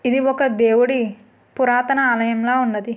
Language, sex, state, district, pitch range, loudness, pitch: Telugu, female, Andhra Pradesh, Srikakulam, 230-260 Hz, -18 LUFS, 245 Hz